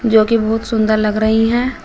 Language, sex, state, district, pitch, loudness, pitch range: Hindi, female, Uttar Pradesh, Shamli, 220 Hz, -15 LUFS, 215-230 Hz